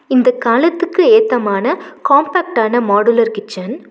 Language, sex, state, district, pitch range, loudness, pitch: Tamil, female, Tamil Nadu, Nilgiris, 225-335 Hz, -13 LUFS, 245 Hz